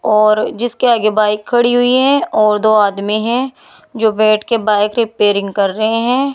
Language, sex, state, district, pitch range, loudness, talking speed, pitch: Hindi, female, Rajasthan, Jaipur, 210-240 Hz, -13 LUFS, 180 wpm, 220 Hz